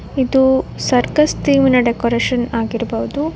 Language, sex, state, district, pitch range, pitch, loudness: Kannada, female, Karnataka, Koppal, 235-275 Hz, 255 Hz, -16 LUFS